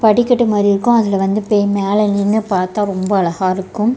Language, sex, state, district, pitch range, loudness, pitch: Tamil, female, Tamil Nadu, Kanyakumari, 195-215 Hz, -15 LUFS, 205 Hz